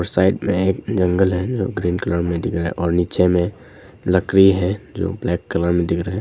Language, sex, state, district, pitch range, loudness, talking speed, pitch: Hindi, male, Arunachal Pradesh, Longding, 85-100 Hz, -19 LUFS, 230 wpm, 90 Hz